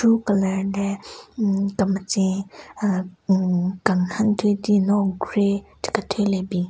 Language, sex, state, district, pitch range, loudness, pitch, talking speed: Rengma, female, Nagaland, Kohima, 190-205 Hz, -22 LUFS, 200 Hz, 145 wpm